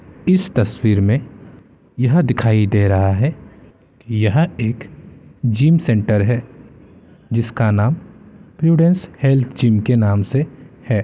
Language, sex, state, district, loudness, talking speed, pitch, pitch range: Hindi, male, Bihar, Samastipur, -17 LUFS, 120 wpm, 125 Hz, 110-145 Hz